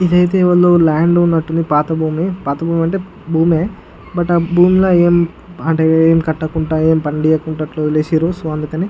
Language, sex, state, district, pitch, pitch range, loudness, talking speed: Telugu, male, Andhra Pradesh, Guntur, 165 Hz, 160-175 Hz, -14 LUFS, 135 wpm